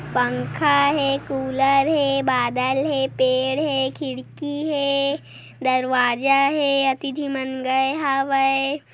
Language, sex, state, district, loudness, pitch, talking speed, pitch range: Hindi, female, Chhattisgarh, Korba, -21 LUFS, 270 Hz, 120 wpm, 260-280 Hz